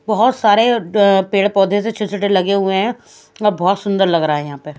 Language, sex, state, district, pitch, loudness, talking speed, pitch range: Hindi, female, Odisha, Khordha, 200 Hz, -15 LUFS, 225 wpm, 190-210 Hz